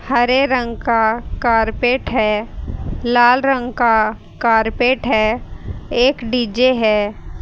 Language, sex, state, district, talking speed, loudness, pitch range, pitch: Hindi, female, Haryana, Rohtak, 105 wpm, -16 LUFS, 225-250 Hz, 240 Hz